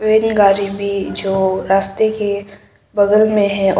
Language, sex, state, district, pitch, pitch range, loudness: Hindi, female, Arunachal Pradesh, Papum Pare, 200 Hz, 195-210 Hz, -15 LUFS